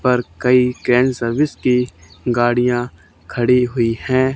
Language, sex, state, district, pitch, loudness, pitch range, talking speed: Hindi, male, Haryana, Charkhi Dadri, 125 Hz, -17 LUFS, 115-125 Hz, 125 wpm